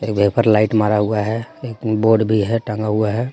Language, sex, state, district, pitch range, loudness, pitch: Hindi, male, Jharkhand, Deoghar, 105-115 Hz, -17 LUFS, 110 Hz